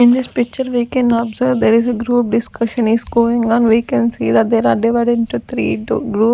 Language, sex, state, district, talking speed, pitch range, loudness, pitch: English, female, Maharashtra, Gondia, 235 wpm, 225-245 Hz, -15 LUFS, 235 Hz